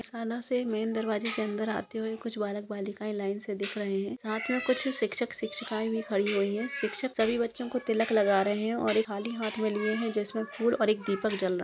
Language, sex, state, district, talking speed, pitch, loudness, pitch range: Hindi, female, Maharashtra, Sindhudurg, 240 wpm, 220 Hz, -30 LUFS, 210-230 Hz